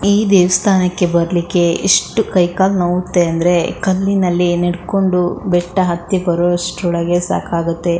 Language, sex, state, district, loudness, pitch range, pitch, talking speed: Kannada, female, Karnataka, Shimoga, -15 LUFS, 175-190 Hz, 175 Hz, 105 wpm